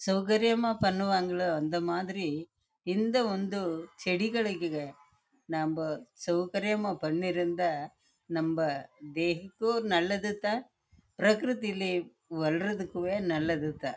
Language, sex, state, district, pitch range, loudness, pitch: Tamil, female, Karnataka, Chamarajanagar, 165-205 Hz, -31 LUFS, 180 Hz